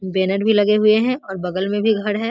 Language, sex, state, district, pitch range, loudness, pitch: Hindi, female, Bihar, Samastipur, 190-220 Hz, -18 LUFS, 210 Hz